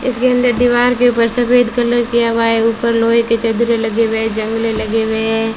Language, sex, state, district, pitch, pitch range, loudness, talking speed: Hindi, female, Rajasthan, Bikaner, 230 Hz, 225-245 Hz, -14 LUFS, 225 wpm